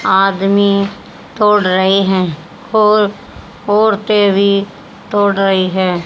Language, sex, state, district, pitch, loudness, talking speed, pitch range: Hindi, female, Haryana, Rohtak, 200 Hz, -13 LUFS, 100 wpm, 190-205 Hz